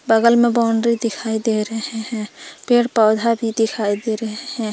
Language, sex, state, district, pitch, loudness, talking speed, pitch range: Hindi, female, Jharkhand, Palamu, 225 Hz, -18 LUFS, 175 wpm, 220-235 Hz